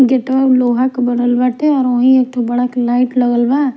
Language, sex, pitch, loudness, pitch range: Bhojpuri, female, 250 Hz, -13 LUFS, 245-260 Hz